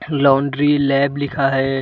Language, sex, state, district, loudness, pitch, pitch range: Hindi, male, Uttar Pradesh, Budaun, -17 LUFS, 140 Hz, 135-145 Hz